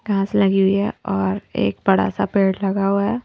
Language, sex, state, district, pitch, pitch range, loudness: Hindi, female, Madhya Pradesh, Bhopal, 195 Hz, 190-200 Hz, -19 LUFS